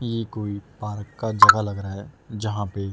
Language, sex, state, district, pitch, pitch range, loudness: Hindi, male, Delhi, New Delhi, 105 Hz, 100-110 Hz, -22 LUFS